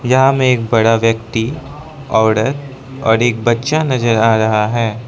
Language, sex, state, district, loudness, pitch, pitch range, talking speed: Hindi, male, Arunachal Pradesh, Lower Dibang Valley, -14 LUFS, 120 Hz, 115-135 Hz, 155 wpm